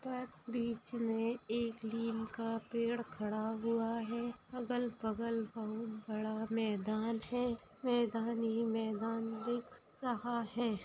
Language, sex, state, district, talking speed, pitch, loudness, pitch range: Hindi, female, Bihar, Sitamarhi, 135 wpm, 230 Hz, -39 LUFS, 225-240 Hz